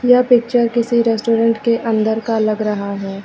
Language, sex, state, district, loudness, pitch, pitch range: Hindi, female, Uttar Pradesh, Lucknow, -16 LUFS, 230 Hz, 215-235 Hz